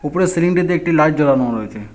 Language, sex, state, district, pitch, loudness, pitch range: Bengali, male, West Bengal, Alipurduar, 150 Hz, -16 LUFS, 125-175 Hz